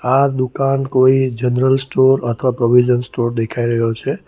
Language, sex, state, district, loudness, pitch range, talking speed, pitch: Gujarati, male, Gujarat, Valsad, -16 LUFS, 120-130 Hz, 155 wpm, 130 Hz